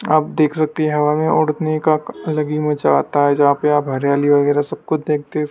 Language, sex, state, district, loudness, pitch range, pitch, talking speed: Hindi, male, Madhya Pradesh, Dhar, -17 LUFS, 145-155 Hz, 150 Hz, 230 wpm